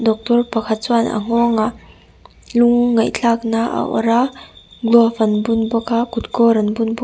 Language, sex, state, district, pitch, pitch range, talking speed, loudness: Mizo, female, Mizoram, Aizawl, 230 Hz, 225-235 Hz, 190 wpm, -17 LUFS